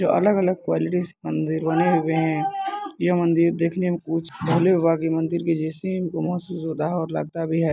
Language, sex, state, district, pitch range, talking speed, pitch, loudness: Hindi, male, Bihar, Muzaffarpur, 160-180 Hz, 180 wpm, 165 Hz, -23 LUFS